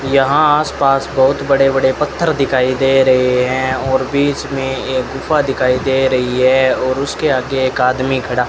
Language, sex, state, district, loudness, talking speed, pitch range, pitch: Hindi, male, Rajasthan, Bikaner, -14 LUFS, 190 wpm, 130-135 Hz, 130 Hz